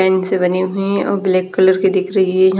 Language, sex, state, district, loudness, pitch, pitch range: Hindi, female, Haryana, Rohtak, -15 LUFS, 190 Hz, 185-190 Hz